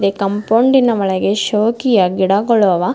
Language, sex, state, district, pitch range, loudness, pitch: Kannada, female, Karnataka, Bidar, 195-230 Hz, -14 LUFS, 210 Hz